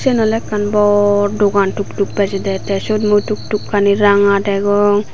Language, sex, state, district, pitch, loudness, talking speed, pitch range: Chakma, female, Tripura, Dhalai, 205 Hz, -15 LUFS, 175 wpm, 200-210 Hz